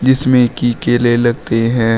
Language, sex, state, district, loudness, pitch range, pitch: Hindi, male, Uttar Pradesh, Shamli, -13 LUFS, 115-125 Hz, 120 Hz